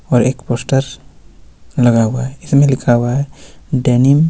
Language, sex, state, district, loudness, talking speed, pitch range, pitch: Hindi, male, Jharkhand, Ranchi, -14 LUFS, 165 wpm, 120-135 Hz, 125 Hz